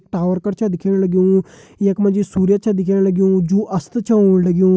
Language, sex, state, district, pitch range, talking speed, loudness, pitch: Hindi, male, Uttarakhand, Uttarkashi, 185-200 Hz, 200 wpm, -16 LUFS, 190 Hz